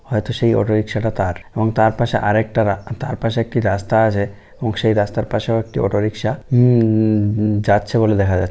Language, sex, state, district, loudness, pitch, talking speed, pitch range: Bengali, male, West Bengal, Kolkata, -18 LUFS, 110 Hz, 225 wpm, 105-115 Hz